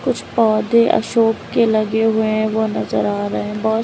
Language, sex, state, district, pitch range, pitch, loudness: Hindi, female, Uttar Pradesh, Lalitpur, 215-225 Hz, 220 Hz, -17 LUFS